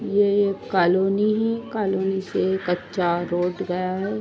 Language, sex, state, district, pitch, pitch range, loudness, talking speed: Hindi, female, Jharkhand, Sahebganj, 190 Hz, 180-205 Hz, -23 LUFS, 140 wpm